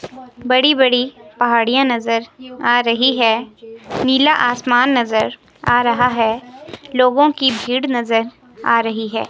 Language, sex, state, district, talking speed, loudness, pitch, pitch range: Hindi, female, Himachal Pradesh, Shimla, 130 wpm, -16 LUFS, 245 Hz, 230-255 Hz